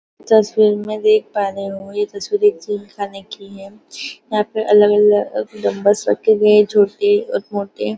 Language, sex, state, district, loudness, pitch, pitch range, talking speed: Hindi, female, Maharashtra, Nagpur, -16 LUFS, 210 Hz, 200-215 Hz, 180 wpm